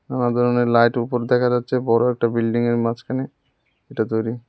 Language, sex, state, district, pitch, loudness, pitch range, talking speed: Bengali, male, Tripura, West Tripura, 120 Hz, -20 LUFS, 115-125 Hz, 160 wpm